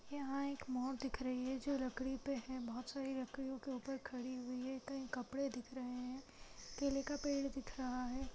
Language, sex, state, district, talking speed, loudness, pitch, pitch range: Hindi, female, Bihar, Madhepura, 210 wpm, -44 LUFS, 265 Hz, 255-275 Hz